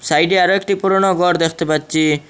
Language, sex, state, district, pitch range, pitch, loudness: Bengali, male, Assam, Hailakandi, 155-190 Hz, 170 Hz, -15 LUFS